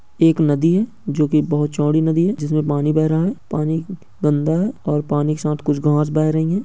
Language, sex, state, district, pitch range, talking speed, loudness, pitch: Hindi, male, Bihar, Muzaffarpur, 150-165 Hz, 245 wpm, -18 LUFS, 155 Hz